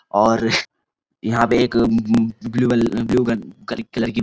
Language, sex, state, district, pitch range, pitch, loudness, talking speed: Hindi, male, Uttarakhand, Uttarkashi, 115-120 Hz, 115 Hz, -19 LUFS, 115 wpm